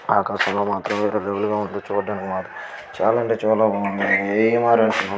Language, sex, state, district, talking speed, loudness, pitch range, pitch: Telugu, male, Karnataka, Belgaum, 105 wpm, -20 LUFS, 100-110 Hz, 105 Hz